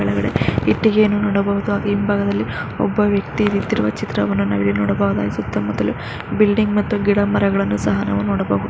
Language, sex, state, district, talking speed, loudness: Kannada, female, Karnataka, Mysore, 130 wpm, -18 LUFS